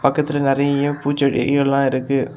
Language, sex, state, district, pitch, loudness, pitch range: Tamil, male, Tamil Nadu, Kanyakumari, 140 Hz, -18 LUFS, 135-140 Hz